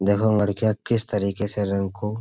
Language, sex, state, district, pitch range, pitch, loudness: Hindi, male, Uttar Pradesh, Budaun, 100-110 Hz, 105 Hz, -21 LUFS